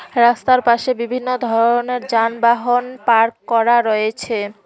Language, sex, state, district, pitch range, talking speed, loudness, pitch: Bengali, female, West Bengal, Cooch Behar, 225-245 Hz, 105 wpm, -16 LUFS, 235 Hz